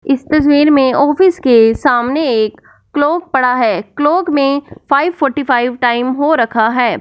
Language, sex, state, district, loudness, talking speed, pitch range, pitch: Hindi, female, Punjab, Fazilka, -13 LUFS, 160 wpm, 245-300 Hz, 280 Hz